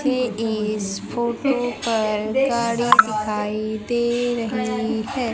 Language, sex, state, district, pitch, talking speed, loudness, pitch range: Hindi, male, Madhya Pradesh, Umaria, 235 Hz, 100 wpm, -21 LUFS, 215-245 Hz